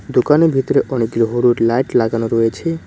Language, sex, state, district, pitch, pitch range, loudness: Bengali, male, West Bengal, Cooch Behar, 120 Hz, 115-135 Hz, -15 LUFS